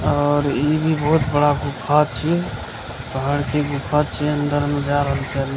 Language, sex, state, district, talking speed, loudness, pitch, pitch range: Maithili, male, Bihar, Begusarai, 185 wpm, -20 LUFS, 145 Hz, 135-150 Hz